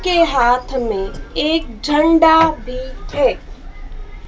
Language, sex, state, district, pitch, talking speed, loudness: Hindi, female, Madhya Pradesh, Dhar, 255 Hz, 100 wpm, -16 LUFS